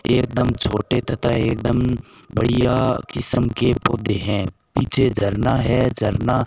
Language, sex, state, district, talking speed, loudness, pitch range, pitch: Hindi, male, Rajasthan, Bikaner, 130 wpm, -20 LUFS, 110-125 Hz, 120 Hz